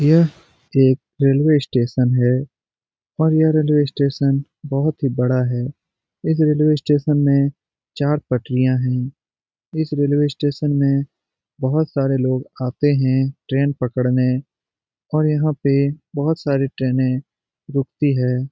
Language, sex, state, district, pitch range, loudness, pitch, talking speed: Hindi, male, Bihar, Jamui, 130-150 Hz, -19 LUFS, 140 Hz, 125 wpm